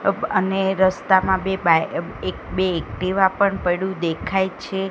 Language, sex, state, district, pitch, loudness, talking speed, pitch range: Gujarati, female, Gujarat, Gandhinagar, 190 Hz, -21 LUFS, 160 wpm, 180-190 Hz